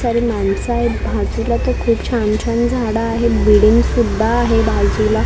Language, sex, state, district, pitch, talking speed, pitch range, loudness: Marathi, female, Maharashtra, Mumbai Suburban, 230 Hz, 170 wpm, 220-235 Hz, -16 LUFS